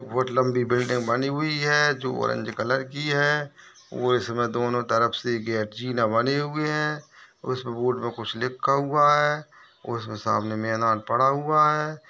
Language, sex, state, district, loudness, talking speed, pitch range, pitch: Hindi, male, Rajasthan, Churu, -24 LUFS, 165 wpm, 120-145 Hz, 130 Hz